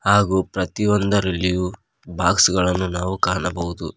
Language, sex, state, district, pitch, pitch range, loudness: Kannada, male, Karnataka, Koppal, 90 Hz, 90-100 Hz, -20 LUFS